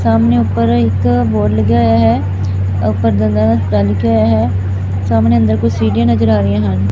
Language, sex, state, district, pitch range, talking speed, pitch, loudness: Punjabi, female, Punjab, Fazilka, 100-115 Hz, 190 wpm, 110 Hz, -13 LUFS